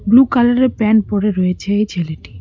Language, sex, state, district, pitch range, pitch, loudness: Bengali, female, West Bengal, Cooch Behar, 185-235 Hz, 210 Hz, -15 LUFS